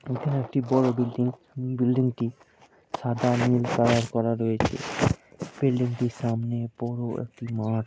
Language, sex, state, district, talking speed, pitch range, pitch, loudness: Bengali, male, West Bengal, Purulia, 120 wpm, 115-125 Hz, 120 Hz, -26 LUFS